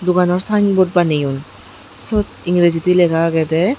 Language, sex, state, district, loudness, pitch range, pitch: Chakma, female, Tripura, Unakoti, -15 LUFS, 155-180 Hz, 175 Hz